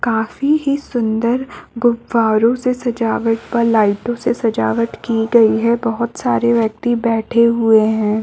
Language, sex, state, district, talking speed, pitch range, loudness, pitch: Hindi, female, Chhattisgarh, Balrampur, 140 wpm, 220-240 Hz, -16 LUFS, 230 Hz